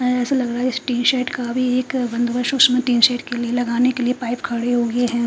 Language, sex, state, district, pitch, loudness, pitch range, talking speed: Hindi, female, Punjab, Fazilka, 245 Hz, -19 LUFS, 240-250 Hz, 260 wpm